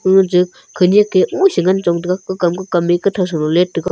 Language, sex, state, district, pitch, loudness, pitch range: Wancho, male, Arunachal Pradesh, Longding, 180 Hz, -15 LUFS, 175-190 Hz